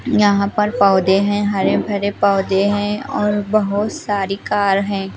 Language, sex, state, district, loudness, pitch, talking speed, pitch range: Hindi, female, Himachal Pradesh, Shimla, -17 LUFS, 205 Hz, 150 wpm, 195-205 Hz